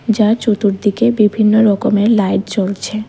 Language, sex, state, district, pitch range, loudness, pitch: Bengali, female, Tripura, West Tripura, 205-220 Hz, -14 LUFS, 215 Hz